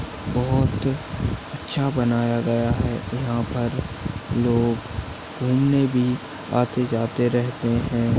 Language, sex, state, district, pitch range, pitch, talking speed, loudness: Hindi, male, Maharashtra, Aurangabad, 115-125 Hz, 120 Hz, 105 wpm, -23 LUFS